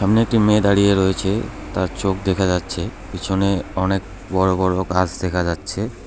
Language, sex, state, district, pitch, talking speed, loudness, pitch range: Bengali, male, West Bengal, Cooch Behar, 95 Hz, 160 wpm, -20 LUFS, 95-100 Hz